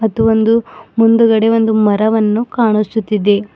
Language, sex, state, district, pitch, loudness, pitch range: Kannada, female, Karnataka, Bidar, 220 Hz, -13 LUFS, 215-225 Hz